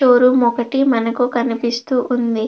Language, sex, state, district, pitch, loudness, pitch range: Telugu, female, Andhra Pradesh, Krishna, 240 Hz, -16 LUFS, 235-250 Hz